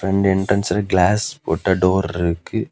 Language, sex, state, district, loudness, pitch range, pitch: Tamil, male, Tamil Nadu, Kanyakumari, -19 LUFS, 90-100 Hz, 95 Hz